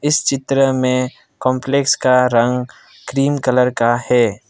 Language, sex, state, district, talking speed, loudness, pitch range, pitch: Hindi, male, Assam, Kamrup Metropolitan, 135 wpm, -16 LUFS, 125-135 Hz, 125 Hz